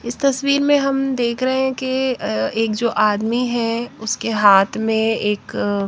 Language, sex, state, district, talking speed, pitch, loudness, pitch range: Hindi, female, Bihar, West Champaran, 175 wpm, 235 Hz, -18 LUFS, 220-260 Hz